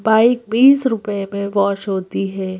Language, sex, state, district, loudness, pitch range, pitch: Hindi, female, Madhya Pradesh, Bhopal, -17 LUFS, 195-225 Hz, 200 Hz